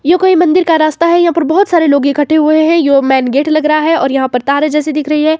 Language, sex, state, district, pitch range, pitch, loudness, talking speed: Hindi, female, Himachal Pradesh, Shimla, 285-330 Hz, 310 Hz, -10 LUFS, 310 wpm